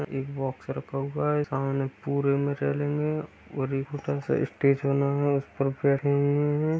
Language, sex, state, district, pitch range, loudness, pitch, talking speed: Hindi, male, Uttar Pradesh, Etah, 135-145 Hz, -27 LUFS, 140 Hz, 195 wpm